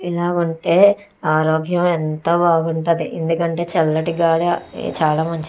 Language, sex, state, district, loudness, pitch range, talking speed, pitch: Telugu, female, Andhra Pradesh, Chittoor, -18 LUFS, 160-175 Hz, 110 wpm, 165 Hz